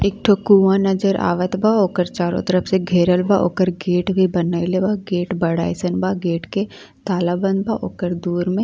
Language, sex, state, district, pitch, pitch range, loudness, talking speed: Bhojpuri, female, Uttar Pradesh, Ghazipur, 185 Hz, 175-195 Hz, -18 LUFS, 195 wpm